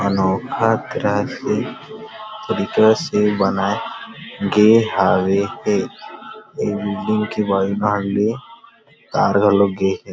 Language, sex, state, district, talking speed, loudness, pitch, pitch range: Chhattisgarhi, male, Chhattisgarh, Rajnandgaon, 90 wpm, -18 LUFS, 105 Hz, 100-115 Hz